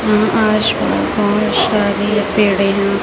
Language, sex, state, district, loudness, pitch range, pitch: Hindi, female, Chhattisgarh, Raipur, -14 LUFS, 200-215 Hz, 210 Hz